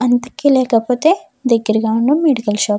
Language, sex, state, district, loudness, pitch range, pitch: Telugu, female, Andhra Pradesh, Chittoor, -15 LUFS, 225-270 Hz, 245 Hz